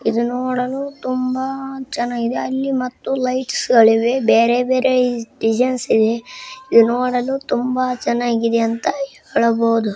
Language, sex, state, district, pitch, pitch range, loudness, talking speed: Kannada, male, Karnataka, Bijapur, 250 Hz, 230-260 Hz, -18 LUFS, 110 wpm